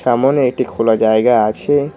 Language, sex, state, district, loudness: Bengali, male, West Bengal, Cooch Behar, -14 LUFS